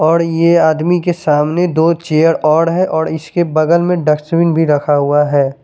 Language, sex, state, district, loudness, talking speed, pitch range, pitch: Hindi, male, Chandigarh, Chandigarh, -13 LUFS, 190 wpm, 150-170 Hz, 160 Hz